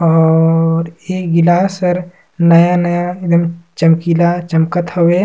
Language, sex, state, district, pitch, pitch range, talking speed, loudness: Surgujia, male, Chhattisgarh, Sarguja, 170 Hz, 165-175 Hz, 105 wpm, -13 LUFS